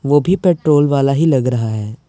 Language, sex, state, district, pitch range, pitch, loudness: Hindi, male, Punjab, Pathankot, 125-160 Hz, 145 Hz, -14 LUFS